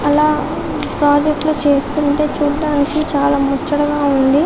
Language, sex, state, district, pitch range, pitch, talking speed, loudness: Telugu, female, Telangana, Karimnagar, 285-300 Hz, 290 Hz, 95 wpm, -15 LUFS